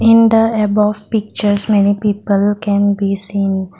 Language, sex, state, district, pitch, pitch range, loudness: English, female, Assam, Kamrup Metropolitan, 205 Hz, 200-215 Hz, -14 LUFS